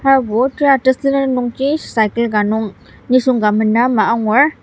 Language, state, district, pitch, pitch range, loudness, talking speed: Ao, Nagaland, Dimapur, 250 Hz, 220-270 Hz, -15 LUFS, 155 wpm